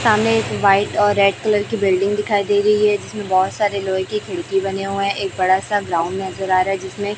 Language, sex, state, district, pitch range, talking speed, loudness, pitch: Hindi, female, Chhattisgarh, Raipur, 190-210 Hz, 260 wpm, -18 LUFS, 200 Hz